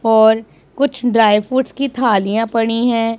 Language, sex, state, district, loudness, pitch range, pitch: Hindi, male, Punjab, Pathankot, -15 LUFS, 220-250 Hz, 230 Hz